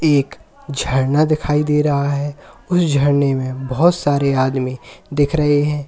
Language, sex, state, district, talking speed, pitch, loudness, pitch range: Hindi, male, Uttar Pradesh, Lalitpur, 155 wpm, 145 Hz, -17 LUFS, 140-150 Hz